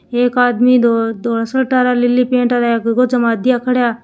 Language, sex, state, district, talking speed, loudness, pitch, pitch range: Hindi, female, Rajasthan, Churu, 210 wpm, -14 LUFS, 245 Hz, 235-250 Hz